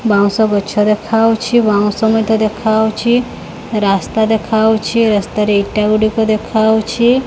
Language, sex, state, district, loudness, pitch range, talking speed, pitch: Odia, female, Odisha, Khordha, -13 LUFS, 210-225 Hz, 100 wpm, 220 Hz